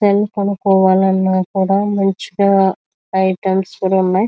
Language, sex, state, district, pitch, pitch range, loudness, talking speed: Telugu, female, Andhra Pradesh, Visakhapatnam, 190 Hz, 190-200 Hz, -15 LUFS, 125 wpm